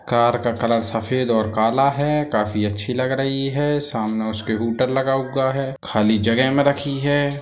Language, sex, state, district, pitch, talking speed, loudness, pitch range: Hindi, male, Bihar, Darbhanga, 130 Hz, 185 wpm, -20 LUFS, 110-135 Hz